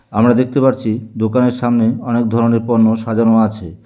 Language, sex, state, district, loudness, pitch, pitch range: Bengali, male, West Bengal, Alipurduar, -14 LUFS, 115 Hz, 110-120 Hz